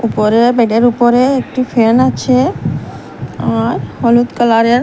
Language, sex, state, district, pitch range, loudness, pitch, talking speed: Bengali, female, Assam, Hailakandi, 230-255 Hz, -12 LUFS, 240 Hz, 110 wpm